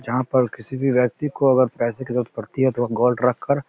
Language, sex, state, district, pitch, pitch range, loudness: Hindi, male, Bihar, Samastipur, 125 Hz, 120-130 Hz, -21 LUFS